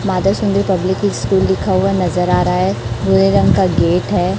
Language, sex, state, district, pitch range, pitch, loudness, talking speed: Hindi, female, Chhattisgarh, Raipur, 115-190 Hz, 180 Hz, -15 LUFS, 205 wpm